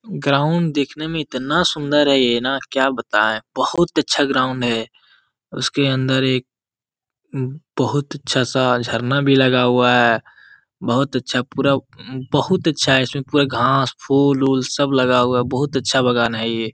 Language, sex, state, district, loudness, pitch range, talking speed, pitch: Hindi, male, Jharkhand, Jamtara, -18 LUFS, 125-140 Hz, 125 wpm, 135 Hz